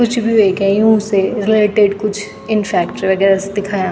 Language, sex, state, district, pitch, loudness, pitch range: Garhwali, female, Uttarakhand, Tehri Garhwal, 205 Hz, -14 LUFS, 195-215 Hz